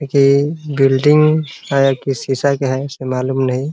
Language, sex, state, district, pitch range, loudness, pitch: Hindi, male, Bihar, Muzaffarpur, 135-145 Hz, -15 LUFS, 140 Hz